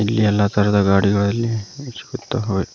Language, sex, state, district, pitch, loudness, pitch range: Kannada, male, Karnataka, Koppal, 105 Hz, -18 LUFS, 100-115 Hz